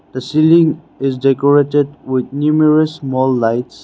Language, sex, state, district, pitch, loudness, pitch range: English, male, Nagaland, Dimapur, 140 Hz, -14 LUFS, 130-155 Hz